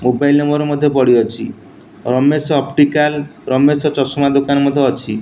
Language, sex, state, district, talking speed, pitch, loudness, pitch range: Odia, male, Odisha, Nuapada, 150 wpm, 140 Hz, -14 LUFS, 130-145 Hz